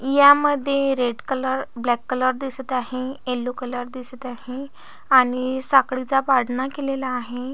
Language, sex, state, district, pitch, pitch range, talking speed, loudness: Marathi, female, Maharashtra, Solapur, 260 Hz, 250-270 Hz, 125 wpm, -21 LUFS